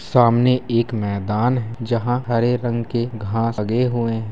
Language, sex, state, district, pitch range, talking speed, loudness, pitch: Hindi, male, Bihar, Purnia, 115-120 Hz, 165 wpm, -20 LUFS, 115 Hz